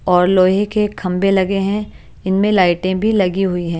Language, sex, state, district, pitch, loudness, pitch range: Hindi, female, Chandigarh, Chandigarh, 190 Hz, -16 LUFS, 185-205 Hz